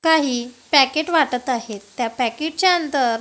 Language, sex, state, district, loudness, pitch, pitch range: Marathi, female, Maharashtra, Gondia, -19 LUFS, 265 Hz, 240-315 Hz